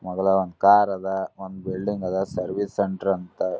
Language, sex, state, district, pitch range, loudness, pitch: Kannada, male, Karnataka, Gulbarga, 95-100 Hz, -23 LUFS, 95 Hz